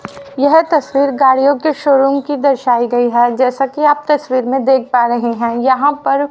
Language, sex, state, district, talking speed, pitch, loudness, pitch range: Hindi, female, Haryana, Rohtak, 190 wpm, 270 Hz, -13 LUFS, 245-285 Hz